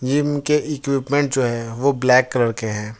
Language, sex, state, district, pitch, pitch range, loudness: Hindi, male, Jharkhand, Ranchi, 130 Hz, 120-145 Hz, -19 LUFS